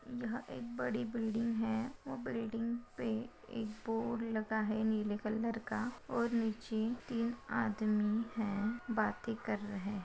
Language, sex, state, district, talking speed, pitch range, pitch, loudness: Hindi, female, Maharashtra, Pune, 135 wpm, 215-235 Hz, 225 Hz, -38 LUFS